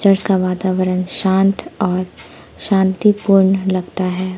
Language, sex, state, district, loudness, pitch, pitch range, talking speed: Hindi, female, Jharkhand, Palamu, -16 LUFS, 190 Hz, 185-195 Hz, 95 wpm